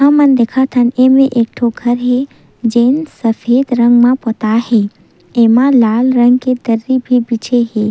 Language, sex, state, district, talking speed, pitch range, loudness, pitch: Chhattisgarhi, female, Chhattisgarh, Sukma, 165 wpm, 230-255 Hz, -12 LUFS, 245 Hz